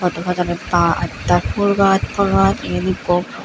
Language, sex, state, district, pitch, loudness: Chakma, female, Tripura, Unakoti, 175 Hz, -17 LUFS